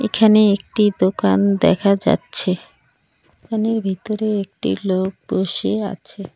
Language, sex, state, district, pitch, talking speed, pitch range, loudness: Bengali, female, West Bengal, Cooch Behar, 200 Hz, 105 wpm, 185-215 Hz, -18 LUFS